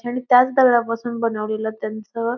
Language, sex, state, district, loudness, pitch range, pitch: Marathi, female, Maharashtra, Pune, -19 LUFS, 220-245 Hz, 235 Hz